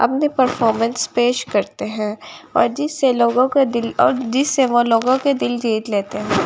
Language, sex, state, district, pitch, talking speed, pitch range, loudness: Hindi, female, Delhi, New Delhi, 245 Hz, 165 wpm, 230-265 Hz, -18 LUFS